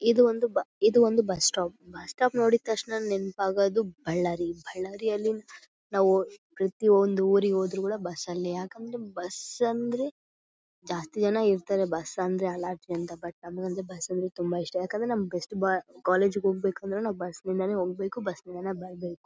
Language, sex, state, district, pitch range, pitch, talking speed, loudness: Kannada, female, Karnataka, Bellary, 180-215 Hz, 190 Hz, 145 wpm, -28 LUFS